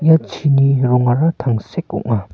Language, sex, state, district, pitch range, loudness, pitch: Garo, male, Meghalaya, North Garo Hills, 120-145 Hz, -16 LUFS, 125 Hz